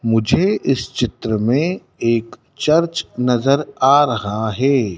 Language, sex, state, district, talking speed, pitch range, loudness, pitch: Hindi, male, Madhya Pradesh, Dhar, 120 wpm, 115-145 Hz, -17 LUFS, 130 Hz